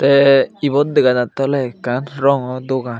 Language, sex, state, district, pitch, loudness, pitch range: Chakma, male, Tripura, Unakoti, 135 Hz, -16 LUFS, 125-140 Hz